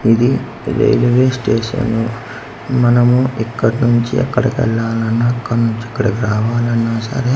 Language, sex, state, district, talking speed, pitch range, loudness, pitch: Telugu, male, Andhra Pradesh, Manyam, 105 wpm, 115-125 Hz, -15 LUFS, 120 Hz